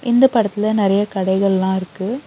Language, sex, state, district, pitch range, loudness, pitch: Tamil, female, Tamil Nadu, Nilgiris, 190-225 Hz, -17 LUFS, 200 Hz